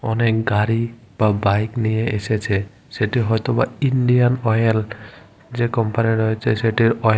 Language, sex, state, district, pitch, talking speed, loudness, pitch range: Bengali, male, Tripura, West Tripura, 110 Hz, 140 wpm, -19 LUFS, 110-115 Hz